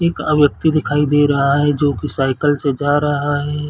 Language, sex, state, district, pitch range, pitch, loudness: Hindi, male, Chhattisgarh, Bilaspur, 145-150 Hz, 145 Hz, -16 LUFS